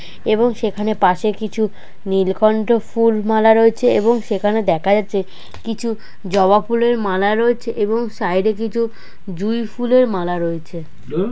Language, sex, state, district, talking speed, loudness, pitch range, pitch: Bengali, female, West Bengal, Jalpaiguri, 125 wpm, -17 LUFS, 195-230 Hz, 215 Hz